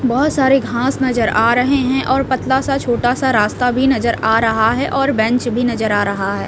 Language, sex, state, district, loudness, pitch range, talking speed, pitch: Hindi, female, Haryana, Rohtak, -15 LUFS, 230-265 Hz, 230 wpm, 245 Hz